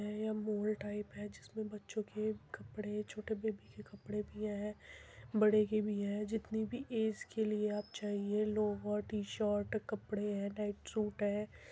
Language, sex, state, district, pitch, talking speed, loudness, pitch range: Hindi, female, Uttar Pradesh, Muzaffarnagar, 210 Hz, 165 wpm, -38 LUFS, 205-215 Hz